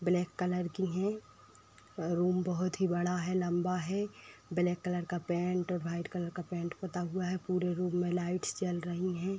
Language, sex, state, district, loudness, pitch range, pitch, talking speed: Hindi, female, Uttar Pradesh, Etah, -34 LUFS, 175-185 Hz, 180 Hz, 185 wpm